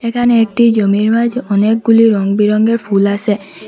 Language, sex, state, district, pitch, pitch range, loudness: Bengali, female, Assam, Hailakandi, 220 Hz, 205-230 Hz, -12 LUFS